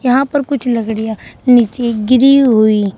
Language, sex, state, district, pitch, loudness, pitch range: Hindi, female, Uttar Pradesh, Shamli, 245 Hz, -12 LUFS, 220-265 Hz